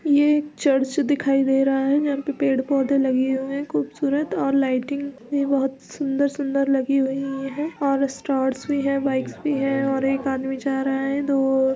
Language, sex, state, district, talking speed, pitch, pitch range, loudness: Hindi, female, Uttar Pradesh, Jalaun, 195 wpm, 275 Hz, 270-280 Hz, -22 LUFS